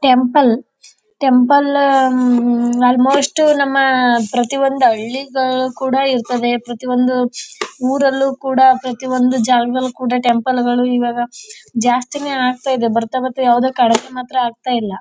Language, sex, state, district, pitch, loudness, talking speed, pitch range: Kannada, female, Karnataka, Chamarajanagar, 255 Hz, -15 LUFS, 100 wpm, 245-265 Hz